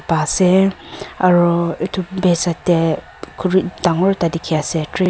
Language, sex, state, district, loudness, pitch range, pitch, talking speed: Nagamese, female, Nagaland, Kohima, -17 LUFS, 170-185 Hz, 175 Hz, 140 wpm